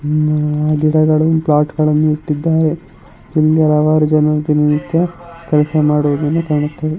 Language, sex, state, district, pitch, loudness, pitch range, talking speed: Kannada, female, Karnataka, Chamarajanagar, 155 Hz, -14 LUFS, 150-155 Hz, 50 wpm